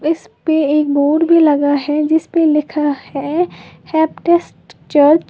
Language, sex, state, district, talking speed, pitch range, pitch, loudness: Hindi, female, Uttar Pradesh, Lalitpur, 125 wpm, 290-320 Hz, 300 Hz, -15 LUFS